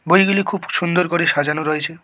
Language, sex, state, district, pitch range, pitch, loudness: Bengali, male, West Bengal, Cooch Behar, 155-190 Hz, 175 Hz, -17 LUFS